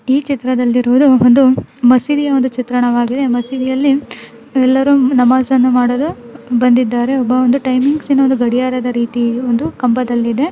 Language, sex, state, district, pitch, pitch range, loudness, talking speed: Kannada, female, Karnataka, Dharwad, 255 Hz, 245-270 Hz, -13 LUFS, 85 wpm